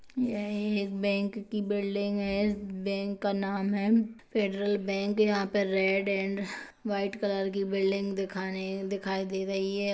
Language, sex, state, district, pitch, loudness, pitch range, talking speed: Hindi, male, Chhattisgarh, Kabirdham, 200 Hz, -30 LUFS, 195-205 Hz, 155 wpm